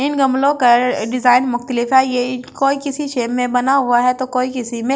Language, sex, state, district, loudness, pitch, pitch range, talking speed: Hindi, female, Delhi, New Delhi, -16 LUFS, 255 Hz, 245-270 Hz, 215 wpm